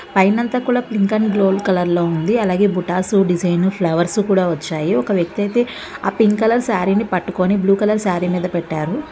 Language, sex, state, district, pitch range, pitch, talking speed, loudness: Telugu, female, Andhra Pradesh, Guntur, 180-215 Hz, 195 Hz, 185 wpm, -17 LUFS